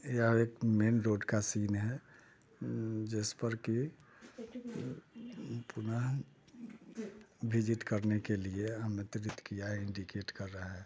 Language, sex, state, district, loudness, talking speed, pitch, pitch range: Hindi, male, Bihar, Muzaffarpur, -37 LUFS, 120 wpm, 115 Hz, 105-130 Hz